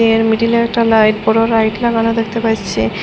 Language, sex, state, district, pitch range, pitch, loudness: Bengali, female, Assam, Hailakandi, 220-230 Hz, 225 Hz, -14 LUFS